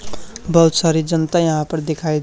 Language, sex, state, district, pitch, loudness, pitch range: Hindi, male, Haryana, Charkhi Dadri, 160 Hz, -17 LUFS, 155-165 Hz